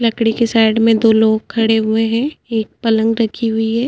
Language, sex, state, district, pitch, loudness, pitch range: Hindi, female, Uttarakhand, Tehri Garhwal, 225 Hz, -15 LUFS, 220-230 Hz